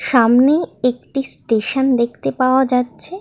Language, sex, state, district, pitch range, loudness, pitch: Bengali, female, West Bengal, Malda, 235-270 Hz, -16 LUFS, 250 Hz